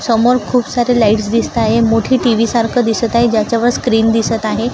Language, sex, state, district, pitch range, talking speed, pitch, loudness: Marathi, female, Maharashtra, Gondia, 225-240 Hz, 190 wpm, 230 Hz, -13 LUFS